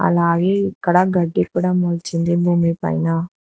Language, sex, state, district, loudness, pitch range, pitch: Telugu, female, Telangana, Hyderabad, -18 LUFS, 170-180 Hz, 175 Hz